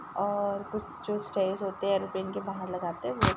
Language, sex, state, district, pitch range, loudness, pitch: Hindi, female, Uttar Pradesh, Ghazipur, 190-205 Hz, -32 LUFS, 195 Hz